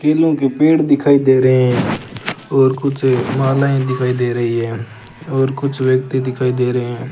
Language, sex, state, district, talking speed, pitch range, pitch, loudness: Hindi, male, Rajasthan, Bikaner, 175 wpm, 125-140 Hz, 130 Hz, -16 LUFS